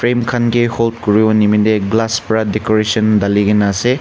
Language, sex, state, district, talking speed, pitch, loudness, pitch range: Nagamese, male, Nagaland, Kohima, 195 wpm, 110 Hz, -14 LUFS, 105-115 Hz